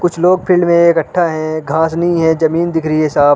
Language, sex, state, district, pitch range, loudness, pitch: Hindi, male, Uttarakhand, Uttarkashi, 155-175 Hz, -13 LUFS, 165 Hz